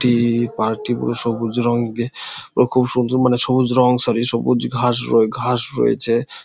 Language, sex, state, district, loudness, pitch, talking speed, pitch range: Bengali, male, West Bengal, Dakshin Dinajpur, -18 LUFS, 120 Hz, 185 wpm, 115-125 Hz